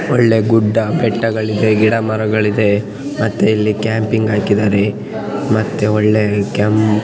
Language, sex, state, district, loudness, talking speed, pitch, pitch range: Kannada, male, Karnataka, Chamarajanagar, -15 LUFS, 95 wpm, 110 Hz, 105-110 Hz